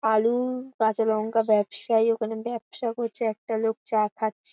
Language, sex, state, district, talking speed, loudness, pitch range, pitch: Bengali, female, West Bengal, Paschim Medinipur, 130 wpm, -26 LUFS, 220-235 Hz, 225 Hz